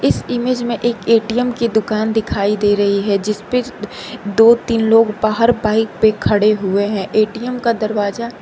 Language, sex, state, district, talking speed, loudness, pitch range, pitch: Hindi, female, Uttar Pradesh, Shamli, 180 wpm, -16 LUFS, 210-235 Hz, 220 Hz